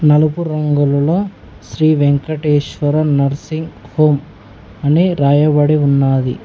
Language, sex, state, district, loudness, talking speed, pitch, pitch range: Telugu, male, Telangana, Mahabubabad, -14 LUFS, 85 wpm, 145 Hz, 140-155 Hz